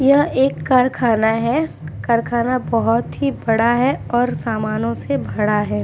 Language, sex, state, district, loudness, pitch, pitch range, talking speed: Hindi, female, Uttar Pradesh, Muzaffarnagar, -18 LUFS, 230 Hz, 215-250 Hz, 145 wpm